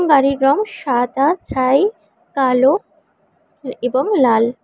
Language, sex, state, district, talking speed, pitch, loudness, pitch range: Bengali, female, Karnataka, Bangalore, 105 wpm, 270 Hz, -16 LUFS, 255-315 Hz